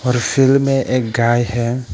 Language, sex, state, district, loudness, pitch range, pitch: Hindi, male, Arunachal Pradesh, Papum Pare, -16 LUFS, 120-135 Hz, 125 Hz